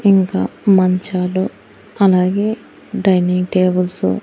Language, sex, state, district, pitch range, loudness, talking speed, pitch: Telugu, female, Andhra Pradesh, Annamaya, 180-195 Hz, -16 LUFS, 85 wpm, 185 Hz